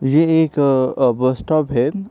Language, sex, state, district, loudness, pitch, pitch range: Hindi, male, Maharashtra, Chandrapur, -17 LUFS, 145 Hz, 130-160 Hz